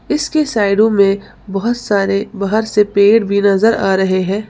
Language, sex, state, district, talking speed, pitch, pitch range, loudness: Hindi, female, Uttar Pradesh, Lalitpur, 175 wpm, 205 Hz, 200-220 Hz, -14 LUFS